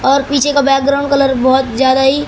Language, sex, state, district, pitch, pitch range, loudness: Hindi, male, Maharashtra, Mumbai Suburban, 275 Hz, 265-280 Hz, -12 LUFS